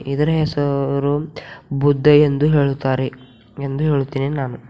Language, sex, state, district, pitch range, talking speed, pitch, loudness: Kannada, female, Karnataka, Bidar, 135-150 Hz, 100 wpm, 140 Hz, -18 LUFS